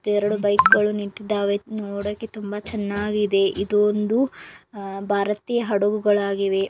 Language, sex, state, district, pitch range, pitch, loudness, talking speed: Kannada, female, Karnataka, Belgaum, 200-210 Hz, 205 Hz, -22 LUFS, 100 wpm